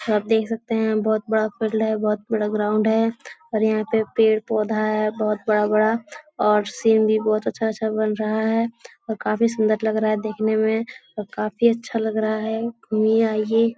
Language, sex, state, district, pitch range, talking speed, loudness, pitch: Hindi, female, Bihar, Jahanabad, 215-225 Hz, 185 wpm, -21 LUFS, 220 Hz